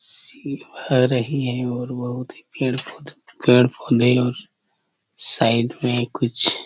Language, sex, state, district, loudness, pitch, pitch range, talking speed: Hindi, male, Chhattisgarh, Korba, -21 LUFS, 125 Hz, 120-130 Hz, 100 wpm